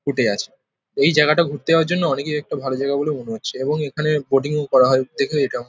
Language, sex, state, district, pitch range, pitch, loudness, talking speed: Bengali, male, West Bengal, Paschim Medinipur, 135-150 Hz, 145 Hz, -19 LUFS, 230 wpm